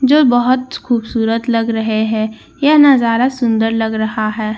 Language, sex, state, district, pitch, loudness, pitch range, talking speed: Hindi, female, Bihar, Katihar, 230 Hz, -14 LUFS, 220-255 Hz, 170 wpm